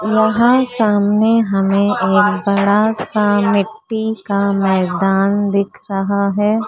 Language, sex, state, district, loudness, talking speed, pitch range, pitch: Hindi, female, Maharashtra, Mumbai Suburban, -15 LUFS, 110 wpm, 200-215 Hz, 205 Hz